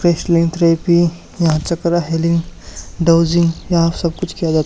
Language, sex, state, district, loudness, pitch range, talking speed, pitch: Hindi, male, Haryana, Charkhi Dadri, -16 LUFS, 165-170 Hz, 130 wpm, 170 Hz